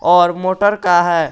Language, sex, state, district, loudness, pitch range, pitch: Hindi, male, Jharkhand, Garhwa, -14 LUFS, 175-185 Hz, 175 Hz